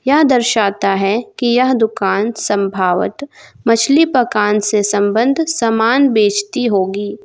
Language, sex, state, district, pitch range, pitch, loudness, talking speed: Hindi, female, Jharkhand, Garhwa, 205-250 Hz, 220 Hz, -14 LUFS, 115 wpm